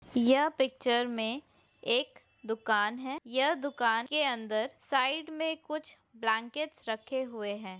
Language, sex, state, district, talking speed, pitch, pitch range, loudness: Hindi, female, Chhattisgarh, Bilaspur, 130 wpm, 260 Hz, 225-300 Hz, -31 LUFS